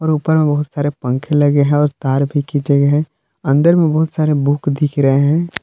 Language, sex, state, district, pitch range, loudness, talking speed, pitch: Hindi, male, Jharkhand, Palamu, 140-155 Hz, -15 LUFS, 225 wpm, 145 Hz